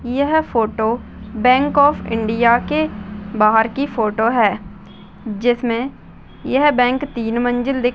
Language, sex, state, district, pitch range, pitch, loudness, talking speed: Hindi, female, Chhattisgarh, Bastar, 220-260 Hz, 240 Hz, -17 LUFS, 120 wpm